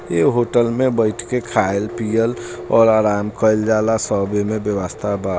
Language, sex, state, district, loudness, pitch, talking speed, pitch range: Bhojpuri, male, Bihar, East Champaran, -18 LUFS, 110 Hz, 120 wpm, 105-115 Hz